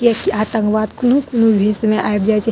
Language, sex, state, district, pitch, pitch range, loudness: Maithili, female, Bihar, Madhepura, 220 Hz, 215-230 Hz, -16 LUFS